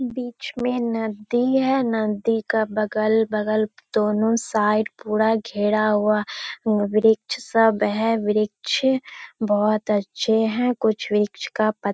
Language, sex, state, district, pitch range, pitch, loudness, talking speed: Hindi, female, Bihar, Purnia, 210-230 Hz, 220 Hz, -21 LUFS, 135 wpm